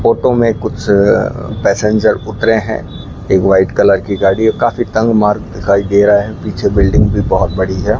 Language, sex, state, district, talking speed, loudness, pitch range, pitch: Hindi, male, Rajasthan, Bikaner, 195 wpm, -12 LUFS, 100-110 Hz, 105 Hz